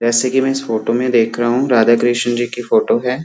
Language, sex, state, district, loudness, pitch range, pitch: Hindi, male, Uttar Pradesh, Muzaffarnagar, -15 LUFS, 120-130 Hz, 120 Hz